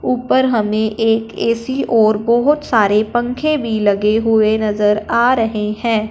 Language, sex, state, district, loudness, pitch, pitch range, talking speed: Hindi, female, Punjab, Fazilka, -15 LUFS, 225 Hz, 215-240 Hz, 145 wpm